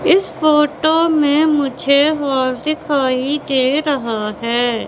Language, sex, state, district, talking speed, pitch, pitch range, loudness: Hindi, female, Madhya Pradesh, Katni, 110 wpm, 285 Hz, 260-305 Hz, -16 LUFS